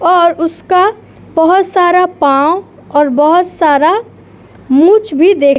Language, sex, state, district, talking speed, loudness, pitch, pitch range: Hindi, female, Uttar Pradesh, Etah, 130 wpm, -10 LUFS, 340 Hz, 300-365 Hz